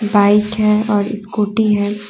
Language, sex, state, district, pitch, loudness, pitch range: Hindi, female, Jharkhand, Deoghar, 210 Hz, -15 LUFS, 205-215 Hz